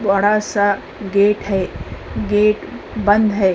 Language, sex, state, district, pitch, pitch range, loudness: Hindi, female, Uttar Pradesh, Hamirpur, 205 Hz, 195-210 Hz, -17 LUFS